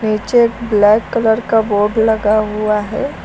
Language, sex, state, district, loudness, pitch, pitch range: Hindi, female, Uttar Pradesh, Lucknow, -14 LUFS, 215 Hz, 210-225 Hz